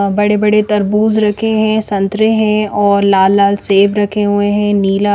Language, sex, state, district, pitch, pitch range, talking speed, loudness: Hindi, female, Chandigarh, Chandigarh, 205 Hz, 200-210 Hz, 175 wpm, -12 LUFS